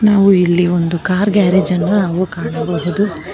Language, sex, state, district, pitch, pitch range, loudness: Kannada, female, Karnataka, Bangalore, 185 Hz, 175-200 Hz, -14 LUFS